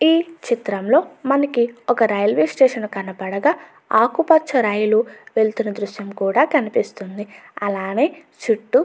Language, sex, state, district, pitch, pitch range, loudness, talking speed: Telugu, female, Andhra Pradesh, Anantapur, 225 Hz, 205-285 Hz, -19 LUFS, 110 wpm